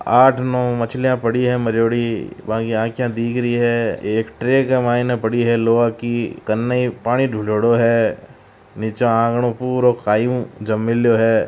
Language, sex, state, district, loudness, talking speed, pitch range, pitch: Marwari, male, Rajasthan, Churu, -18 LUFS, 160 wpm, 115-125 Hz, 120 Hz